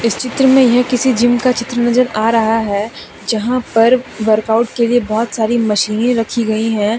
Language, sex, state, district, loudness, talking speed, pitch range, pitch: Hindi, female, Jharkhand, Deoghar, -14 LUFS, 190 wpm, 220-245 Hz, 230 Hz